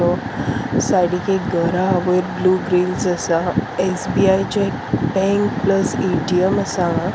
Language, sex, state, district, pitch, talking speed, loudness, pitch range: Konkani, female, Goa, North and South Goa, 185 Hz, 135 wpm, -18 LUFS, 180-195 Hz